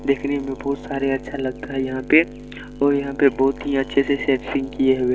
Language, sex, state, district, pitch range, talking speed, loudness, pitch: Maithili, male, Bihar, Supaul, 130-140 Hz, 220 wpm, -21 LUFS, 135 Hz